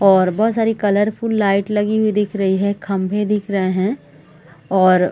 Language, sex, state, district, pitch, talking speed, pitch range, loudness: Hindi, female, Chhattisgarh, Raigarh, 200 Hz, 175 wpm, 185-210 Hz, -17 LUFS